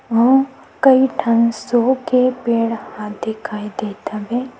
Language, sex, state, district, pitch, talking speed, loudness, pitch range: Chhattisgarhi, female, Chhattisgarh, Sukma, 235 Hz, 130 wpm, -17 LUFS, 215-255 Hz